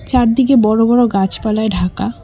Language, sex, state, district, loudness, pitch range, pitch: Bengali, female, West Bengal, Cooch Behar, -14 LUFS, 205-245 Hz, 225 Hz